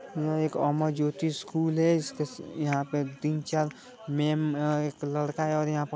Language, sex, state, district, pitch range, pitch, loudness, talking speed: Hindi, male, Bihar, Gaya, 150-155 Hz, 150 Hz, -29 LUFS, 180 wpm